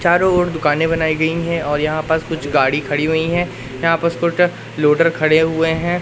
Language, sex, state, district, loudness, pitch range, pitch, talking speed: Hindi, male, Madhya Pradesh, Katni, -17 LUFS, 150-170 Hz, 160 Hz, 210 wpm